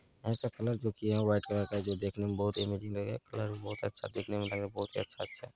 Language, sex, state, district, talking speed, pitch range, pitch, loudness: Bhojpuri, male, Bihar, Saran, 260 wpm, 100-110 Hz, 105 Hz, -36 LUFS